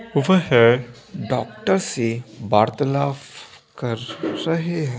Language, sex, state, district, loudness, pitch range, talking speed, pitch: Hindi, male, Bihar, Begusarai, -20 LUFS, 115-165 Hz, 85 wpm, 140 Hz